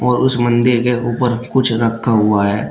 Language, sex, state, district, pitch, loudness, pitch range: Hindi, male, Uttar Pradesh, Shamli, 120 Hz, -15 LUFS, 115-125 Hz